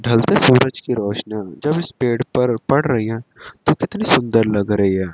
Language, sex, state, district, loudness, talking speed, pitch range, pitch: Hindi, male, Chandigarh, Chandigarh, -17 LUFS, 200 wpm, 105-125 Hz, 115 Hz